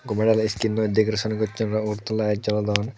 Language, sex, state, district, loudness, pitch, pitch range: Chakma, male, Tripura, Dhalai, -23 LUFS, 110 Hz, 105-110 Hz